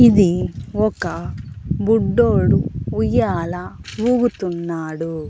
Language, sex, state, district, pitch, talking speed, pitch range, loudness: Telugu, female, Andhra Pradesh, Annamaya, 200 Hz, 55 wpm, 170-225 Hz, -19 LUFS